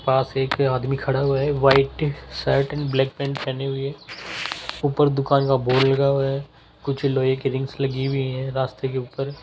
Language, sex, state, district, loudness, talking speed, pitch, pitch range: Hindi, male, Rajasthan, Jaipur, -22 LUFS, 195 wpm, 135 Hz, 135-140 Hz